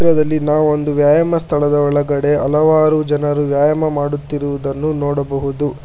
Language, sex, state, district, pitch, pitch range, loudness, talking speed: Kannada, male, Karnataka, Bangalore, 145 Hz, 145-155 Hz, -15 LUFS, 115 wpm